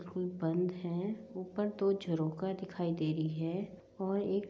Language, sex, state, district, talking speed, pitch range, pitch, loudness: Hindi, female, Uttar Pradesh, Jyotiba Phule Nagar, 145 wpm, 170-195 Hz, 180 Hz, -36 LUFS